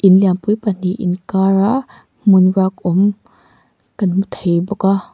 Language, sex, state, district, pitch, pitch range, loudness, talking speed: Mizo, female, Mizoram, Aizawl, 195 Hz, 185-200 Hz, -16 LUFS, 140 wpm